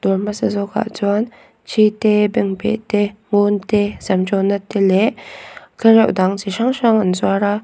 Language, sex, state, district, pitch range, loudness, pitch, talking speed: Mizo, female, Mizoram, Aizawl, 200-220 Hz, -17 LUFS, 205 Hz, 175 wpm